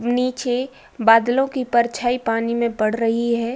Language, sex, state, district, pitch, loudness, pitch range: Hindi, female, Uttar Pradesh, Budaun, 235 Hz, -20 LUFS, 230-250 Hz